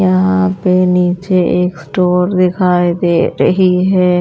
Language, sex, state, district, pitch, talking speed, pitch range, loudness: Hindi, female, Punjab, Pathankot, 180 Hz, 130 wpm, 175-185 Hz, -12 LUFS